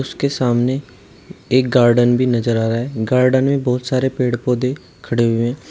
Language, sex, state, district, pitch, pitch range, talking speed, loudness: Hindi, male, Uttar Pradesh, Shamli, 125 Hz, 120-130 Hz, 190 wpm, -17 LUFS